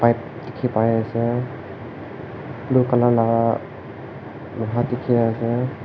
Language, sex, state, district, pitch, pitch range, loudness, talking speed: Nagamese, male, Nagaland, Kohima, 120 Hz, 115-125 Hz, -21 LUFS, 90 wpm